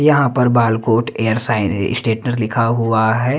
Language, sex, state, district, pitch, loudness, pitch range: Hindi, male, Delhi, New Delhi, 115 Hz, -16 LUFS, 110-125 Hz